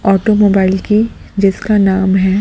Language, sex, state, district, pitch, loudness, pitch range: Hindi, male, Delhi, New Delhi, 195 Hz, -12 LUFS, 190-210 Hz